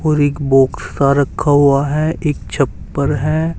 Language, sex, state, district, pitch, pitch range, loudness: Hindi, male, Uttar Pradesh, Saharanpur, 145 Hz, 140-150 Hz, -15 LUFS